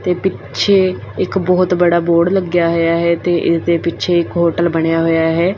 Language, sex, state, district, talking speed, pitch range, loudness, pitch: Punjabi, female, Punjab, Fazilka, 180 wpm, 170-180 Hz, -15 LUFS, 170 Hz